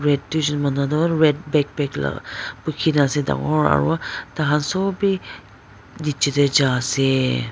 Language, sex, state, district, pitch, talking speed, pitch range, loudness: Nagamese, female, Nagaland, Dimapur, 145 Hz, 160 wpm, 140-155 Hz, -20 LUFS